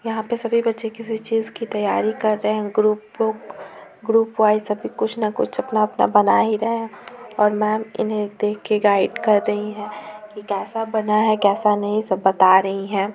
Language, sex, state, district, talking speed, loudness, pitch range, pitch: Hindi, female, Bihar, Gopalganj, 195 wpm, -20 LUFS, 210-225 Hz, 215 Hz